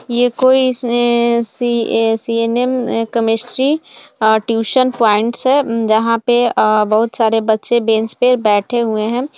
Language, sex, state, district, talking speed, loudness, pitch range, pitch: Hindi, female, Bihar, Bhagalpur, 120 wpm, -14 LUFS, 225-245 Hz, 235 Hz